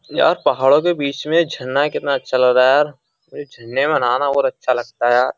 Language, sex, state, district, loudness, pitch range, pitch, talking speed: Hindi, male, Uttar Pradesh, Jyotiba Phule Nagar, -17 LUFS, 130-170 Hz, 140 Hz, 235 wpm